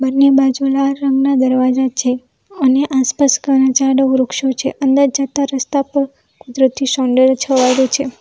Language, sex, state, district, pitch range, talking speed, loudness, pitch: Gujarati, female, Gujarat, Valsad, 260-275 Hz, 145 wpm, -14 LUFS, 270 Hz